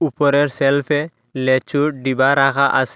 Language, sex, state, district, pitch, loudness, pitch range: Bengali, male, Assam, Hailakandi, 140 Hz, -17 LUFS, 130-145 Hz